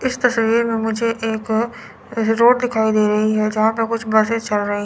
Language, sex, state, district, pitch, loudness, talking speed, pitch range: Hindi, female, Chandigarh, Chandigarh, 225 Hz, -18 LUFS, 200 wpm, 220-230 Hz